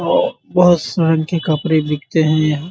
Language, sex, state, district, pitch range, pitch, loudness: Maithili, male, Bihar, Muzaffarpur, 155-175 Hz, 160 Hz, -16 LUFS